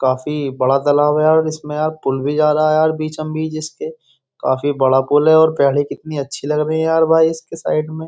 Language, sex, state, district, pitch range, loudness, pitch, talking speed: Hindi, male, Uttar Pradesh, Jyotiba Phule Nagar, 145-155 Hz, -16 LUFS, 155 Hz, 230 wpm